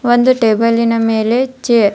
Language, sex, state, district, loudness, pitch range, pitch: Kannada, female, Karnataka, Dharwad, -13 LUFS, 225-240 Hz, 230 Hz